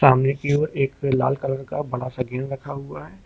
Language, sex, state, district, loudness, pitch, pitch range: Hindi, male, Uttar Pradesh, Lucknow, -23 LUFS, 135 Hz, 130-140 Hz